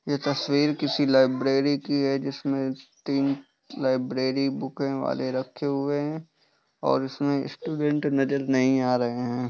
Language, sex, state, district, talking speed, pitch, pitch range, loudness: Hindi, male, Bihar, East Champaran, 140 wpm, 135 Hz, 130-145 Hz, -26 LUFS